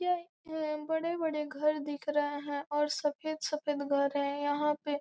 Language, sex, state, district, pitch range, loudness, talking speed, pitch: Hindi, female, Bihar, Gopalganj, 290-310 Hz, -33 LUFS, 145 wpm, 295 Hz